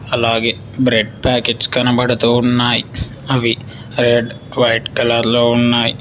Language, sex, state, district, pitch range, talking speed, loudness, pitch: Telugu, male, Telangana, Hyderabad, 115-125 Hz, 110 wpm, -15 LUFS, 120 Hz